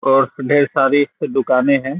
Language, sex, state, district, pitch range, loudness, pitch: Hindi, male, Bihar, Saran, 130-140 Hz, -16 LUFS, 135 Hz